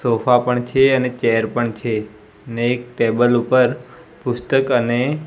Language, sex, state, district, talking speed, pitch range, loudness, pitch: Gujarati, male, Gujarat, Gandhinagar, 150 wpm, 115-130 Hz, -18 LUFS, 120 Hz